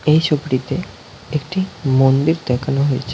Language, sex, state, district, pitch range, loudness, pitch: Bengali, male, West Bengal, North 24 Parganas, 130-155 Hz, -18 LUFS, 140 Hz